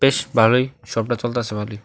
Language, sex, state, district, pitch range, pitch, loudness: Bengali, male, Tripura, West Tripura, 110-125 Hz, 120 Hz, -20 LUFS